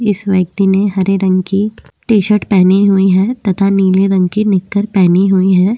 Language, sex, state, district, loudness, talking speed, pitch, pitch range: Hindi, female, Uttarakhand, Tehri Garhwal, -12 LUFS, 185 wpm, 195 Hz, 190-205 Hz